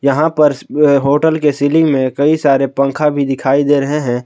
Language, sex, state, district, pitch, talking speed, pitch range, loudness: Hindi, male, Jharkhand, Palamu, 145 Hz, 210 wpm, 135-150 Hz, -13 LUFS